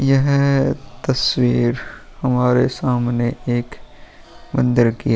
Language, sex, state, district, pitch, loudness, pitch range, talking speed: Hindi, male, Bihar, Vaishali, 125 Hz, -18 LUFS, 120-135 Hz, 95 wpm